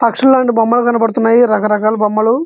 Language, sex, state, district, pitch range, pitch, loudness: Telugu, male, Andhra Pradesh, Visakhapatnam, 215-240 Hz, 230 Hz, -12 LUFS